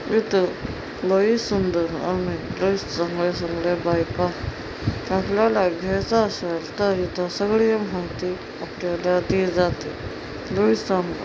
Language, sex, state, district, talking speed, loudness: Marathi, female, Maharashtra, Chandrapur, 70 wpm, -23 LUFS